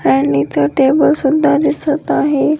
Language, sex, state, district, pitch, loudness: Marathi, female, Maharashtra, Washim, 285 Hz, -13 LUFS